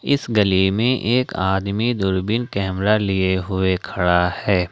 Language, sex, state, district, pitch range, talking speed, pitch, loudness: Hindi, male, Jharkhand, Ranchi, 95-110 Hz, 140 wpm, 95 Hz, -19 LUFS